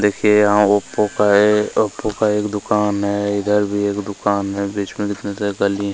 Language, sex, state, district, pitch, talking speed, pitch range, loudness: Hindi, male, Chhattisgarh, Kabirdham, 105 Hz, 200 wpm, 100-105 Hz, -18 LUFS